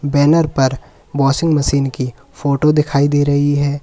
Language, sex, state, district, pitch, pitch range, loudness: Hindi, male, Uttar Pradesh, Lalitpur, 145 Hz, 140-145 Hz, -15 LUFS